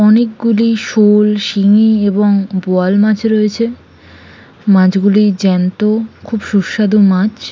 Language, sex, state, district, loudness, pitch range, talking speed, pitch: Bengali, female, West Bengal, Purulia, -12 LUFS, 200-220 Hz, 105 wpm, 210 Hz